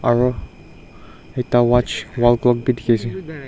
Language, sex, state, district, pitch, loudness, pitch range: Nagamese, male, Nagaland, Dimapur, 120 Hz, -18 LUFS, 120-125 Hz